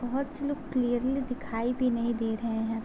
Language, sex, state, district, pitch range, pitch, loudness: Hindi, female, Uttar Pradesh, Gorakhpur, 230-270 Hz, 245 Hz, -30 LUFS